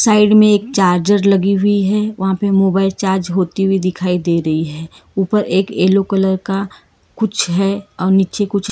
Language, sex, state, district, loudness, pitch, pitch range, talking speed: Hindi, female, Karnataka, Bangalore, -15 LUFS, 195 Hz, 185-205 Hz, 185 wpm